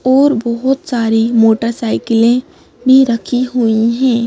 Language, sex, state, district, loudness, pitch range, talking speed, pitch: Hindi, female, Madhya Pradesh, Bhopal, -13 LUFS, 230-260 Hz, 110 wpm, 235 Hz